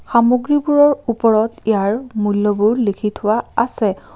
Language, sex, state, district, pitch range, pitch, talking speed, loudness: Assamese, female, Assam, Kamrup Metropolitan, 210-240 Hz, 220 Hz, 100 wpm, -16 LUFS